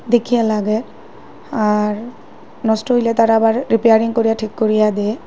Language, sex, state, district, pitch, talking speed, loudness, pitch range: Bengali, female, Assam, Hailakandi, 225 Hz, 135 wpm, -16 LUFS, 215-230 Hz